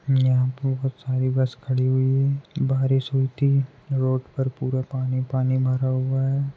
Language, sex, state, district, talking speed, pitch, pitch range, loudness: Hindi, male, Maharashtra, Pune, 175 wpm, 130 Hz, 130-135 Hz, -23 LUFS